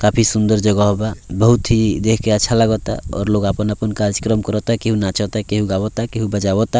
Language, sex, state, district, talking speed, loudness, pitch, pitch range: Bhojpuri, male, Bihar, Muzaffarpur, 220 wpm, -17 LUFS, 105 Hz, 105-110 Hz